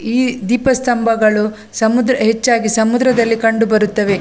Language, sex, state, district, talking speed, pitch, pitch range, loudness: Kannada, female, Karnataka, Dakshina Kannada, 115 wpm, 225 Hz, 215-245 Hz, -14 LUFS